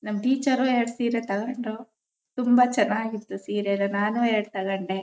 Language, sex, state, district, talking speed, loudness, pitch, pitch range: Kannada, female, Karnataka, Shimoga, 155 wpm, -25 LUFS, 220 Hz, 200-245 Hz